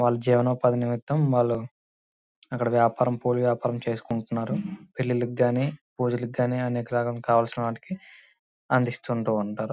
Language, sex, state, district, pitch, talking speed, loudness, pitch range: Telugu, male, Andhra Pradesh, Srikakulam, 120 Hz, 115 wpm, -26 LUFS, 115-125 Hz